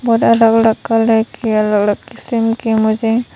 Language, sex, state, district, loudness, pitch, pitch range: Hindi, female, Arunachal Pradesh, Papum Pare, -14 LUFS, 225 Hz, 220-230 Hz